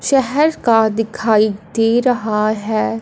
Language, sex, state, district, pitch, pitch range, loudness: Hindi, female, Punjab, Fazilka, 225 Hz, 215-240 Hz, -16 LUFS